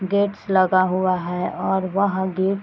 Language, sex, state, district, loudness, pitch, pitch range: Hindi, female, Bihar, Madhepura, -21 LUFS, 190 Hz, 185-195 Hz